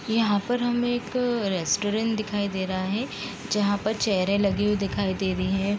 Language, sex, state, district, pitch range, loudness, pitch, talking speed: Hindi, female, Uttar Pradesh, Deoria, 195-225 Hz, -25 LUFS, 205 Hz, 185 wpm